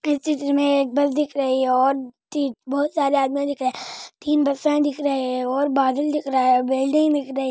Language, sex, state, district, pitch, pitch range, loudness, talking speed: Hindi, female, Andhra Pradesh, Anantapur, 280 Hz, 265-290 Hz, -21 LUFS, 200 wpm